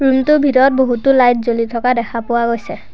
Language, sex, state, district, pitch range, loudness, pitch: Assamese, male, Assam, Sonitpur, 235-265 Hz, -14 LUFS, 245 Hz